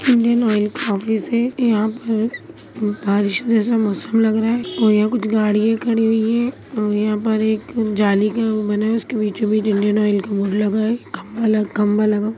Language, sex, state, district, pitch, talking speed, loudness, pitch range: Hindi, female, Bihar, Lakhisarai, 215 Hz, 210 wpm, -18 LUFS, 210-225 Hz